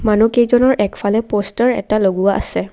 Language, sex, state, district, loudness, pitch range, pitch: Assamese, female, Assam, Kamrup Metropolitan, -15 LUFS, 200-235 Hz, 210 Hz